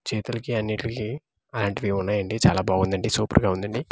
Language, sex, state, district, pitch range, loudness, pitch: Telugu, male, Andhra Pradesh, Manyam, 100-115 Hz, -24 LUFS, 110 Hz